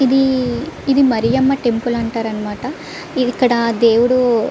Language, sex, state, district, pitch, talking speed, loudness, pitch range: Telugu, female, Andhra Pradesh, Visakhapatnam, 245 Hz, 120 wpm, -16 LUFS, 230-265 Hz